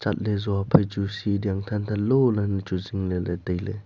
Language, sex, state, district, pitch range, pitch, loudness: Wancho, male, Arunachal Pradesh, Longding, 95-105 Hz, 100 Hz, -25 LUFS